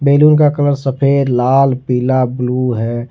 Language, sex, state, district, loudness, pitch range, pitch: Hindi, male, Jharkhand, Ranchi, -13 LUFS, 125-140 Hz, 130 Hz